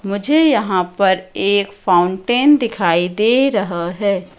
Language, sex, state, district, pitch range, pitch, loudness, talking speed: Hindi, female, Madhya Pradesh, Katni, 185-230 Hz, 200 Hz, -15 LUFS, 125 wpm